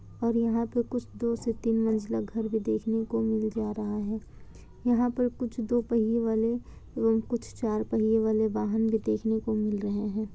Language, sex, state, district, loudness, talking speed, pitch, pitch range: Hindi, female, Bihar, Kishanganj, -29 LUFS, 205 wpm, 225 Hz, 215-235 Hz